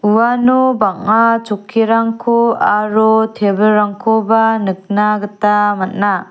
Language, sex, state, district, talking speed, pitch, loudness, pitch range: Garo, female, Meghalaya, South Garo Hills, 75 wpm, 215 Hz, -13 LUFS, 205-225 Hz